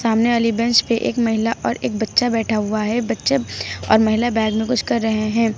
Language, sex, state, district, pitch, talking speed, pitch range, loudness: Hindi, female, Uttar Pradesh, Lucknow, 225 Hz, 225 wpm, 215-230 Hz, -19 LUFS